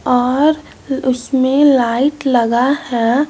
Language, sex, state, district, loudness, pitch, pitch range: Hindi, male, Bihar, West Champaran, -15 LUFS, 260 Hz, 245-285 Hz